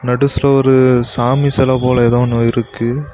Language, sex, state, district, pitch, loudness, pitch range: Tamil, male, Tamil Nadu, Kanyakumari, 125 Hz, -13 LUFS, 120-135 Hz